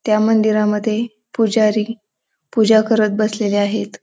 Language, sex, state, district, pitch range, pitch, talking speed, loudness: Marathi, female, Maharashtra, Pune, 215-220 Hz, 215 Hz, 105 wpm, -17 LUFS